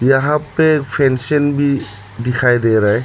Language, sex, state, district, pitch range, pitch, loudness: Hindi, male, Arunachal Pradesh, Lower Dibang Valley, 120-145 Hz, 135 Hz, -15 LUFS